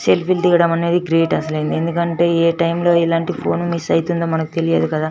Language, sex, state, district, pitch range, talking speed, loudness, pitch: Telugu, female, Telangana, Nalgonda, 165-170 Hz, 200 wpm, -17 LUFS, 170 Hz